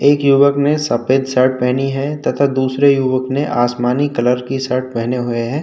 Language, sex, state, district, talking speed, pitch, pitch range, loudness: Hindi, male, Uttar Pradesh, Hamirpur, 190 wpm, 130 Hz, 125-140 Hz, -15 LUFS